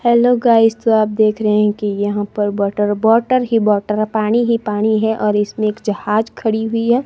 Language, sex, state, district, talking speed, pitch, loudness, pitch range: Hindi, female, Himachal Pradesh, Shimla, 210 wpm, 215 Hz, -16 LUFS, 210-230 Hz